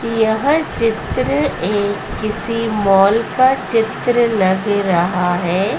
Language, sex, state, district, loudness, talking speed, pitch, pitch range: Hindi, female, Madhya Pradesh, Dhar, -16 LUFS, 105 wpm, 215 Hz, 195-230 Hz